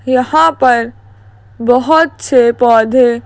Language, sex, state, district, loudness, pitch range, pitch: Hindi, female, Madhya Pradesh, Bhopal, -11 LUFS, 230-260 Hz, 245 Hz